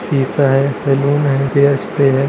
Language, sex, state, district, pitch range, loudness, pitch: Hindi, male, Bihar, Darbhanga, 135-140 Hz, -14 LUFS, 140 Hz